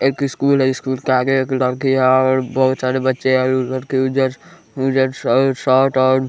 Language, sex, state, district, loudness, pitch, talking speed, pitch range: Hindi, male, Bihar, West Champaran, -17 LUFS, 130 Hz, 160 wpm, 130-135 Hz